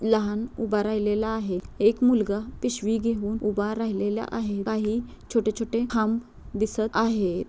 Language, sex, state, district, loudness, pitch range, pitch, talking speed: Marathi, female, Maharashtra, Dhule, -26 LUFS, 210-225 Hz, 220 Hz, 130 wpm